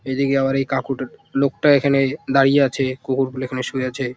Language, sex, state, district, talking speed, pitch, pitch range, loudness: Bengali, male, West Bengal, Jalpaiguri, 215 wpm, 135 Hz, 130-140 Hz, -19 LUFS